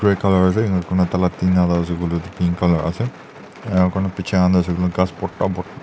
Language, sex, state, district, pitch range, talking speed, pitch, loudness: Nagamese, male, Nagaland, Dimapur, 90-95 Hz, 225 wpm, 90 Hz, -19 LUFS